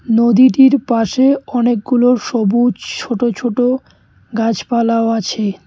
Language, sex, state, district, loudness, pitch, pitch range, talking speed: Bengali, male, West Bengal, Cooch Behar, -14 LUFS, 235 Hz, 225-250 Hz, 85 wpm